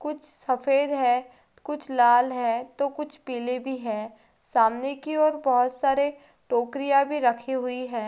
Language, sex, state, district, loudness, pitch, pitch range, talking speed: Hindi, female, Chhattisgarh, Rajnandgaon, -25 LUFS, 255 Hz, 245-280 Hz, 155 wpm